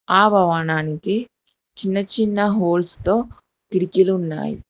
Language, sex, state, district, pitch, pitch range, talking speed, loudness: Telugu, female, Telangana, Hyderabad, 190 Hz, 175-205 Hz, 100 wpm, -18 LUFS